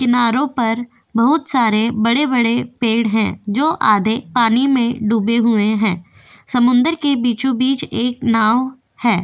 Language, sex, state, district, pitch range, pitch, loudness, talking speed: Hindi, female, Goa, North and South Goa, 225-255 Hz, 235 Hz, -16 LUFS, 145 wpm